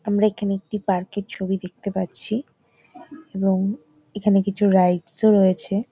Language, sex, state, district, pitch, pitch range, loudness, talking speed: Bengali, female, West Bengal, North 24 Parganas, 200 Hz, 190-210 Hz, -22 LUFS, 140 wpm